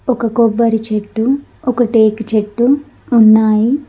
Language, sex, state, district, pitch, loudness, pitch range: Telugu, female, Telangana, Mahabubabad, 230 Hz, -13 LUFS, 220-250 Hz